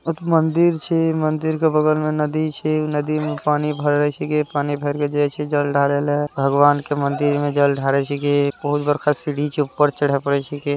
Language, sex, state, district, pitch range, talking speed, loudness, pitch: Hindi, male, Bihar, Araria, 145-155 Hz, 195 wpm, -19 LUFS, 145 Hz